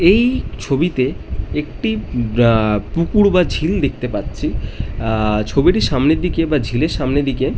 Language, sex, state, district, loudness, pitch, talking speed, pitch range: Bengali, male, West Bengal, North 24 Parganas, -17 LUFS, 130 Hz, 140 wpm, 110-165 Hz